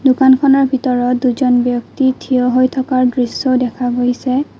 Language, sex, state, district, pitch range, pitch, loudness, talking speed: Assamese, female, Assam, Kamrup Metropolitan, 245-265 Hz, 255 Hz, -14 LUFS, 130 wpm